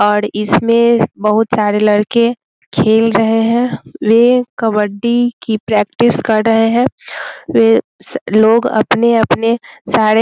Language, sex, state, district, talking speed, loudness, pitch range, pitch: Hindi, female, Bihar, Muzaffarpur, 115 wpm, -13 LUFS, 215-235 Hz, 225 Hz